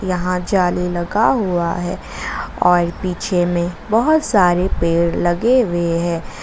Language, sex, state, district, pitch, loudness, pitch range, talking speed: Hindi, female, Jharkhand, Garhwa, 180 Hz, -17 LUFS, 175-185 Hz, 130 wpm